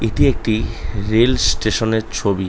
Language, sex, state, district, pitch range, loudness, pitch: Bengali, male, West Bengal, North 24 Parganas, 100-115 Hz, -18 LUFS, 110 Hz